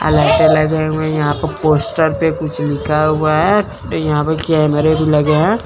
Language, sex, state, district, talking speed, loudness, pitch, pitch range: Hindi, male, Chandigarh, Chandigarh, 190 wpm, -14 LUFS, 155 Hz, 150-160 Hz